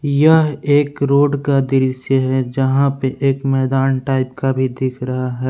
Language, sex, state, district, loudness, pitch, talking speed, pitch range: Hindi, male, Jharkhand, Palamu, -16 LUFS, 135 Hz, 165 wpm, 130-140 Hz